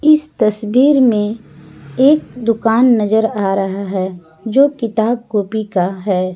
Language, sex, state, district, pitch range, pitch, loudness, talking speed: Hindi, female, Jharkhand, Garhwa, 195-245 Hz, 220 Hz, -15 LUFS, 130 wpm